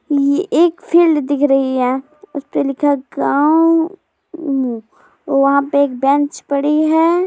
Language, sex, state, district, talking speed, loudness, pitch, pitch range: Hindi, female, Uttar Pradesh, Jyotiba Phule Nagar, 130 wpm, -15 LUFS, 290 Hz, 280-330 Hz